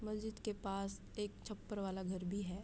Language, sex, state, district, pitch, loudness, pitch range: Hindi, female, Uttar Pradesh, Budaun, 200 Hz, -44 LUFS, 190-215 Hz